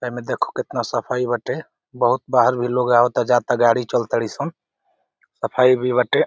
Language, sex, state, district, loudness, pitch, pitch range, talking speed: Bhojpuri, male, Uttar Pradesh, Deoria, -20 LUFS, 125 Hz, 120-125 Hz, 170 wpm